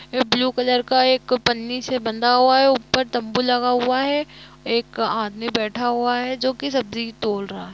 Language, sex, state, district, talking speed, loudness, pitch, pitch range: Hindi, female, Jharkhand, Jamtara, 210 wpm, -20 LUFS, 245 Hz, 235-255 Hz